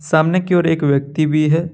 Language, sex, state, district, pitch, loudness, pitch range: Hindi, male, Jharkhand, Deoghar, 155 Hz, -16 LUFS, 150-170 Hz